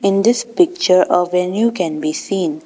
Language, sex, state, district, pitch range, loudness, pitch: English, female, Arunachal Pradesh, Papum Pare, 175-230 Hz, -16 LUFS, 185 Hz